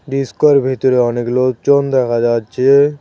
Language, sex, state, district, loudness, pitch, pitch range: Bengali, male, West Bengal, Cooch Behar, -14 LUFS, 130 Hz, 120-140 Hz